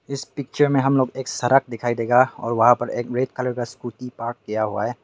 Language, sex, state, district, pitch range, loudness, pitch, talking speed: Hindi, male, Meghalaya, West Garo Hills, 120-135 Hz, -21 LUFS, 125 Hz, 250 wpm